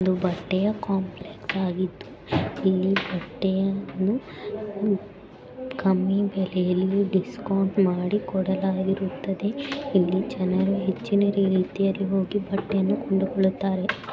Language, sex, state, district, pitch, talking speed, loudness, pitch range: Kannada, female, Karnataka, Bellary, 195 Hz, 80 wpm, -25 LUFS, 185-200 Hz